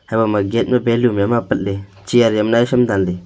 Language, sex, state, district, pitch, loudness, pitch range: Wancho, male, Arunachal Pradesh, Longding, 115 Hz, -16 LUFS, 100-120 Hz